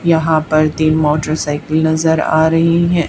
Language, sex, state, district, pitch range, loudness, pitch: Hindi, female, Haryana, Charkhi Dadri, 155-165 Hz, -14 LUFS, 160 Hz